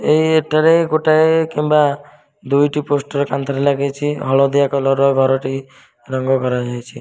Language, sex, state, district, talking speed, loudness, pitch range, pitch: Odia, male, Odisha, Malkangiri, 130 wpm, -16 LUFS, 135-150 Hz, 140 Hz